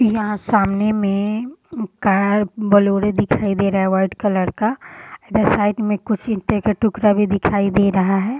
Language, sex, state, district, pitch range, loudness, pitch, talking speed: Hindi, female, Bihar, Purnia, 200-215 Hz, -18 LUFS, 205 Hz, 170 wpm